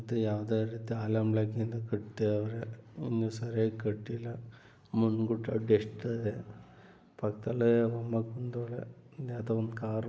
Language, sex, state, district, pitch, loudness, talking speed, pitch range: Kannada, male, Karnataka, Mysore, 115 Hz, -33 LUFS, 65 wpm, 110-115 Hz